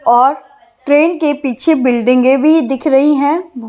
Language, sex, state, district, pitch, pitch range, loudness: Hindi, female, Maharashtra, Mumbai Suburban, 275 Hz, 255-300 Hz, -12 LUFS